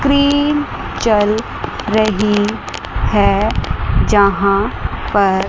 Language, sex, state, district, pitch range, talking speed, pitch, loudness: Hindi, female, Chandigarh, Chandigarh, 200-235 Hz, 55 wpm, 210 Hz, -15 LUFS